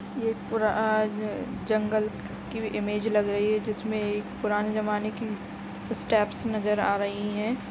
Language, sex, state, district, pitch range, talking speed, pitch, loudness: Hindi, female, Chhattisgarh, Raigarh, 210-220 Hz, 155 wpm, 215 Hz, -28 LUFS